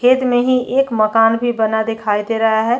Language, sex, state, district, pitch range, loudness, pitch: Hindi, female, Chhattisgarh, Bastar, 220-245 Hz, -15 LUFS, 225 Hz